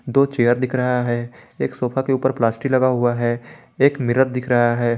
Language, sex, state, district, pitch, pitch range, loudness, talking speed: Hindi, male, Jharkhand, Garhwa, 125 Hz, 120-130 Hz, -19 LUFS, 215 wpm